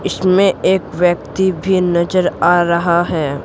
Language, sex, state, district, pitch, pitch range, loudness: Hindi, female, Bihar, Patna, 175 Hz, 170-185 Hz, -14 LUFS